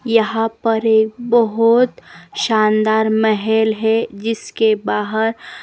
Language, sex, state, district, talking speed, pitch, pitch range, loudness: Hindi, female, Himachal Pradesh, Shimla, 95 wpm, 220 Hz, 220-225 Hz, -16 LUFS